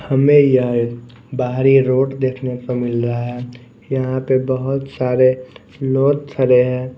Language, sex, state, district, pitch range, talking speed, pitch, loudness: Hindi, male, Maharashtra, Mumbai Suburban, 125-135 Hz, 145 wpm, 130 Hz, -17 LUFS